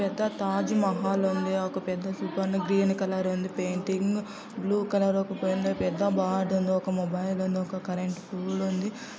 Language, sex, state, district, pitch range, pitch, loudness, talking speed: Telugu, female, Andhra Pradesh, Anantapur, 185-195 Hz, 190 Hz, -28 LUFS, 115 wpm